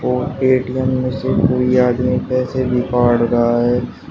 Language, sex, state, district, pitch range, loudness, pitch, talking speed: Hindi, male, Uttar Pradesh, Shamli, 120-130 Hz, -16 LUFS, 125 Hz, 160 wpm